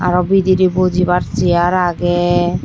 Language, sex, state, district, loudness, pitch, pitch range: Chakma, male, Tripura, Dhalai, -14 LUFS, 180 Hz, 175-185 Hz